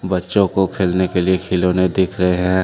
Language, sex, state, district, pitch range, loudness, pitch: Hindi, male, Jharkhand, Deoghar, 90-95 Hz, -17 LUFS, 90 Hz